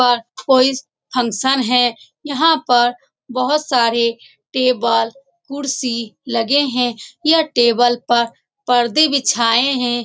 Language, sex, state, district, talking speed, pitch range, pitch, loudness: Hindi, female, Bihar, Saran, 105 wpm, 235-270 Hz, 245 Hz, -16 LUFS